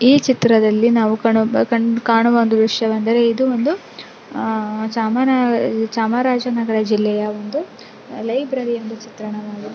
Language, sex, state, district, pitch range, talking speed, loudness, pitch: Kannada, female, Karnataka, Chamarajanagar, 220-245 Hz, 100 wpm, -17 LUFS, 230 Hz